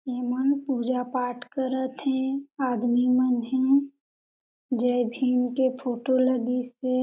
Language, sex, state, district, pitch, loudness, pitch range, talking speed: Chhattisgarhi, female, Chhattisgarh, Jashpur, 255 Hz, -26 LUFS, 250-265 Hz, 120 wpm